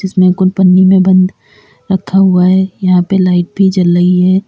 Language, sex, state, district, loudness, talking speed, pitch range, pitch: Hindi, female, Uttar Pradesh, Lalitpur, -10 LUFS, 200 wpm, 180-190 Hz, 185 Hz